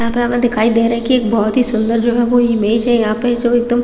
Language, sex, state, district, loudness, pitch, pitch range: Hindi, female, Chhattisgarh, Raigarh, -14 LUFS, 235 Hz, 230-240 Hz